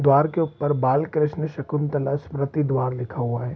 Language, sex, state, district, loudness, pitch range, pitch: Hindi, male, Bihar, Supaul, -23 LUFS, 130-150 Hz, 145 Hz